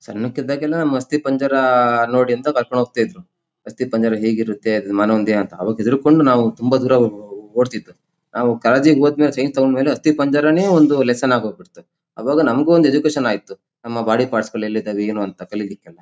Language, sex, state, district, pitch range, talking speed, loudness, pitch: Kannada, male, Karnataka, Shimoga, 110-145 Hz, 180 wpm, -17 LUFS, 125 Hz